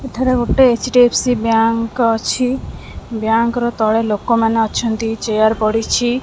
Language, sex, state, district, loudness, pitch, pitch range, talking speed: Odia, female, Odisha, Khordha, -15 LUFS, 230 Hz, 225-245 Hz, 155 wpm